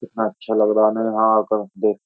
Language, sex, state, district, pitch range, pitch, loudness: Hindi, male, Uttar Pradesh, Jyotiba Phule Nagar, 105-110 Hz, 110 Hz, -19 LUFS